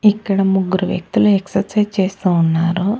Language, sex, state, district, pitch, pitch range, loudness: Telugu, female, Andhra Pradesh, Annamaya, 195 Hz, 185-205 Hz, -16 LUFS